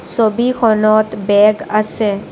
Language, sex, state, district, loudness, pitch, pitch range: Assamese, female, Assam, Kamrup Metropolitan, -14 LUFS, 215 Hz, 210-220 Hz